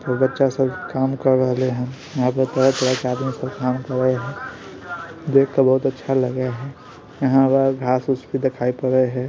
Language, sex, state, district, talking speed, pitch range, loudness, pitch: Maithili, male, Bihar, Bhagalpur, 185 wpm, 130-135 Hz, -20 LUFS, 130 Hz